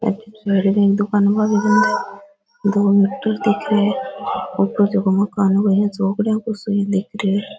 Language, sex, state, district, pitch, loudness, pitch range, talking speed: Rajasthani, female, Rajasthan, Nagaur, 205 Hz, -18 LUFS, 200-215 Hz, 190 wpm